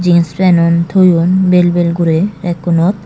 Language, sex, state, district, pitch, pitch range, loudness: Chakma, female, Tripura, Dhalai, 175 Hz, 170-185 Hz, -11 LUFS